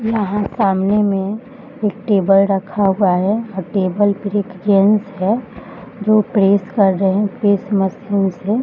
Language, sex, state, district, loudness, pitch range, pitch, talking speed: Hindi, female, Bihar, Bhagalpur, -16 LUFS, 195-215 Hz, 200 Hz, 145 wpm